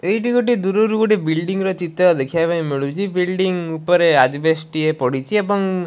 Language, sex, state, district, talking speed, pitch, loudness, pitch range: Odia, male, Odisha, Malkangiri, 155 wpm, 180 Hz, -18 LUFS, 160-200 Hz